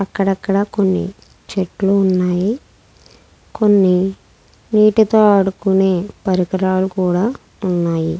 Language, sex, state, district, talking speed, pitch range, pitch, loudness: Telugu, female, Andhra Pradesh, Krishna, 75 wpm, 185-205 Hz, 190 Hz, -16 LUFS